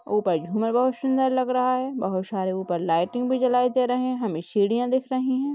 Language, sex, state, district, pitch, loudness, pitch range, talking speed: Hindi, female, Chhattisgarh, Bastar, 245 Hz, -24 LUFS, 190-255 Hz, 225 wpm